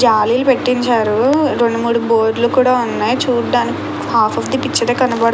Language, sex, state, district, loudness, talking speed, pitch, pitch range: Telugu, female, Andhra Pradesh, Krishna, -15 LUFS, 170 wpm, 240 Hz, 230-250 Hz